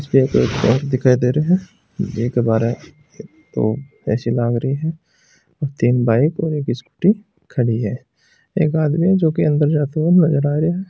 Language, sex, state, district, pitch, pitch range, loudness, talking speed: Marwari, male, Rajasthan, Nagaur, 150 Hz, 125-165 Hz, -18 LUFS, 140 wpm